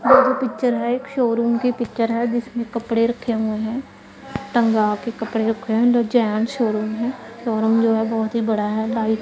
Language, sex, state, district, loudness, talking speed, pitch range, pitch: Hindi, female, Punjab, Pathankot, -20 LUFS, 200 wpm, 220-240 Hz, 230 Hz